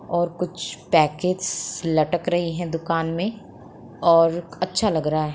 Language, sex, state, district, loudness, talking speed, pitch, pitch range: Hindi, female, Bihar, Sitamarhi, -22 LUFS, 155 wpm, 170 Hz, 160-180 Hz